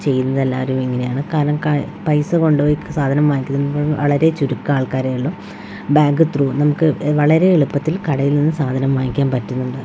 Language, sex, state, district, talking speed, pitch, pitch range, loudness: Malayalam, female, Kerala, Wayanad, 135 wpm, 145 Hz, 130-150 Hz, -17 LUFS